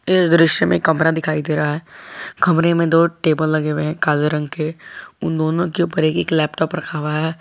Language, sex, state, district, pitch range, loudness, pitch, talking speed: Hindi, male, Jharkhand, Garhwa, 155-165 Hz, -18 LUFS, 160 Hz, 225 wpm